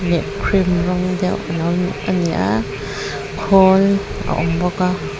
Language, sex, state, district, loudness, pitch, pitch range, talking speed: Mizo, female, Mizoram, Aizawl, -18 LUFS, 180 Hz, 175-190 Hz, 160 wpm